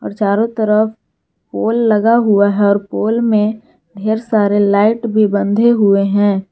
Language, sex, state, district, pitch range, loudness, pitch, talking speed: Hindi, female, Jharkhand, Garhwa, 200-225 Hz, -14 LUFS, 215 Hz, 145 wpm